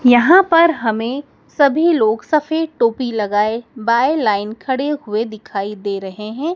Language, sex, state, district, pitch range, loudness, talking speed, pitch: Hindi, male, Madhya Pradesh, Dhar, 215-305 Hz, -16 LUFS, 145 wpm, 240 Hz